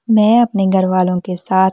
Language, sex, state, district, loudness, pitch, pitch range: Hindi, female, Delhi, New Delhi, -14 LUFS, 190 Hz, 185-210 Hz